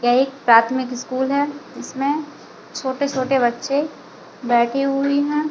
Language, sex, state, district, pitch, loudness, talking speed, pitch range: Hindi, female, Chhattisgarh, Bilaspur, 270 Hz, -20 LUFS, 120 wpm, 250-285 Hz